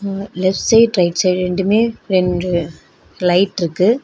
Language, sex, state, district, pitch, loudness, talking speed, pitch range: Tamil, female, Tamil Nadu, Nilgiris, 185 Hz, -16 LUFS, 135 wpm, 180-200 Hz